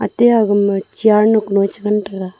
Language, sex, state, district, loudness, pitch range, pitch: Wancho, female, Arunachal Pradesh, Longding, -14 LUFS, 200-215 Hz, 210 Hz